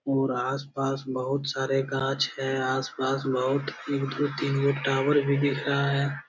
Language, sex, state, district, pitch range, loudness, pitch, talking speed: Hindi, male, Bihar, Jamui, 135-140 Hz, -27 LUFS, 135 Hz, 160 wpm